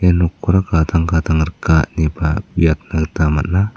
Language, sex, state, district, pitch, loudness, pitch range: Garo, male, Meghalaya, South Garo Hills, 80 Hz, -16 LUFS, 80-90 Hz